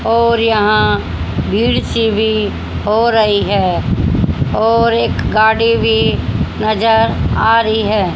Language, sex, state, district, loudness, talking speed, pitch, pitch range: Hindi, female, Haryana, Rohtak, -13 LUFS, 120 wpm, 220 Hz, 210-225 Hz